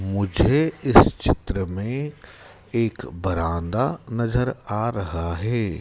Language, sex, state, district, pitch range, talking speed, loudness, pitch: Hindi, male, Madhya Pradesh, Dhar, 95-125 Hz, 105 wpm, -23 LUFS, 110 Hz